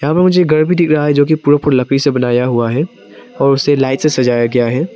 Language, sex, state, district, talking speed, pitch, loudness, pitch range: Hindi, male, Arunachal Pradesh, Papum Pare, 145 wpm, 140 Hz, -13 LUFS, 125-155 Hz